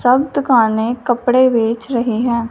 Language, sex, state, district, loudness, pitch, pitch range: Hindi, female, Punjab, Fazilka, -15 LUFS, 240 Hz, 230-255 Hz